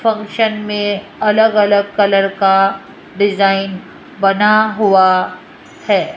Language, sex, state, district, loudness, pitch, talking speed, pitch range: Hindi, female, Rajasthan, Jaipur, -14 LUFS, 205 Hz, 95 wpm, 195-215 Hz